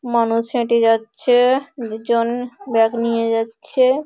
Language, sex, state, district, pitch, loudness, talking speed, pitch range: Bengali, female, West Bengal, Malda, 235 Hz, -18 LUFS, 120 wpm, 230-250 Hz